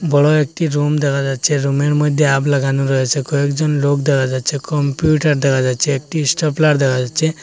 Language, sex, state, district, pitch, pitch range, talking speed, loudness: Bengali, male, Assam, Hailakandi, 145 Hz, 135-150 Hz, 170 wpm, -16 LUFS